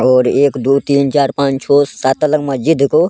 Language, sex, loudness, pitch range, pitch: Angika, male, -13 LUFS, 135-145 Hz, 140 Hz